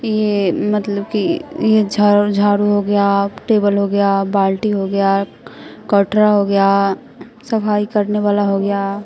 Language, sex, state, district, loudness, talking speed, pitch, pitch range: Hindi, female, Bihar, West Champaran, -16 LUFS, 145 wpm, 205 Hz, 200-210 Hz